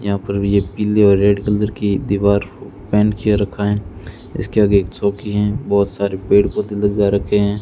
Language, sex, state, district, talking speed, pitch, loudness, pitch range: Hindi, male, Rajasthan, Bikaner, 205 wpm, 100 Hz, -17 LUFS, 100-105 Hz